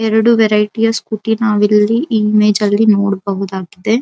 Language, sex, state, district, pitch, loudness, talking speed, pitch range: Kannada, female, Karnataka, Dharwad, 210 Hz, -13 LUFS, 120 wpm, 210-225 Hz